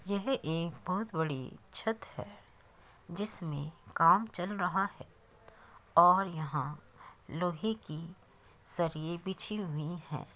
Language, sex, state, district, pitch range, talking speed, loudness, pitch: Hindi, male, Uttar Pradesh, Muzaffarnagar, 155-195 Hz, 110 wpm, -33 LUFS, 170 Hz